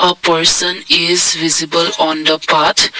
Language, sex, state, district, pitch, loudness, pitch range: English, male, Assam, Kamrup Metropolitan, 170 Hz, -12 LUFS, 160-175 Hz